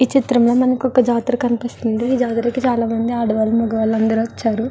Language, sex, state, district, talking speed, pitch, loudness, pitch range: Telugu, female, Andhra Pradesh, Visakhapatnam, 155 wpm, 235 Hz, -17 LUFS, 225-250 Hz